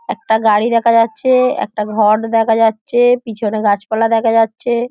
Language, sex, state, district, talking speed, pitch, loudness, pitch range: Bengali, female, West Bengal, Dakshin Dinajpur, 145 wpm, 225 Hz, -14 LUFS, 220-235 Hz